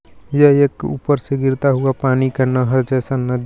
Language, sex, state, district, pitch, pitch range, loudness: Hindi, female, Jharkhand, Garhwa, 130 Hz, 130-140 Hz, -16 LUFS